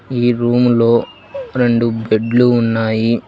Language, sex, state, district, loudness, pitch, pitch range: Telugu, male, Telangana, Hyderabad, -14 LUFS, 120 Hz, 115-120 Hz